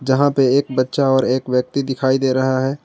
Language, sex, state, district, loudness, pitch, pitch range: Hindi, male, Jharkhand, Garhwa, -17 LUFS, 130 Hz, 130-135 Hz